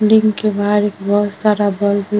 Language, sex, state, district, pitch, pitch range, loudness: Hindi, female, Bihar, Vaishali, 205 Hz, 205-210 Hz, -16 LUFS